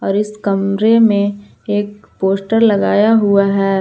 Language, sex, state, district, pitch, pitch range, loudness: Hindi, female, Jharkhand, Palamu, 205 Hz, 195-215 Hz, -14 LUFS